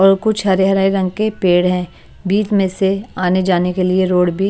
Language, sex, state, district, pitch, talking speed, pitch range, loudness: Hindi, female, Maharashtra, Washim, 190 Hz, 240 wpm, 180-195 Hz, -16 LUFS